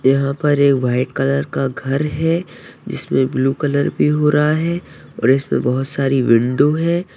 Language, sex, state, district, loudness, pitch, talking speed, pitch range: Hindi, male, Maharashtra, Solapur, -17 LUFS, 140 Hz, 185 wpm, 130-150 Hz